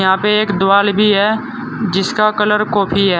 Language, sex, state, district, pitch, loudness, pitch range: Hindi, male, Uttar Pradesh, Saharanpur, 210 Hz, -14 LUFS, 195-215 Hz